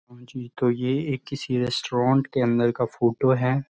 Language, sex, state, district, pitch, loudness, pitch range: Hindi, male, Bihar, Sitamarhi, 125 Hz, -24 LUFS, 120-130 Hz